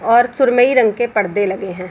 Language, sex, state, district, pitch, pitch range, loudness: Hindi, female, Bihar, Samastipur, 230 Hz, 195-245 Hz, -15 LUFS